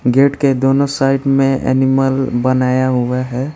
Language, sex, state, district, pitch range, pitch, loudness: Hindi, male, West Bengal, Alipurduar, 130-135 Hz, 135 Hz, -14 LUFS